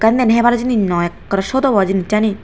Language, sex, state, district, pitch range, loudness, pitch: Chakma, female, Tripura, Unakoti, 195-240 Hz, -15 LUFS, 215 Hz